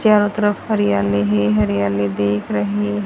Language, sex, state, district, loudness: Hindi, female, Haryana, Charkhi Dadri, -18 LUFS